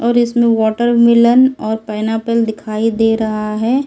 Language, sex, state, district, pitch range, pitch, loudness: Hindi, female, Delhi, New Delhi, 220-235 Hz, 225 Hz, -14 LUFS